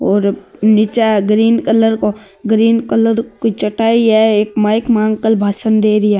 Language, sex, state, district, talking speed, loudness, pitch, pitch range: Marwari, male, Rajasthan, Nagaur, 175 wpm, -13 LUFS, 220 Hz, 210-225 Hz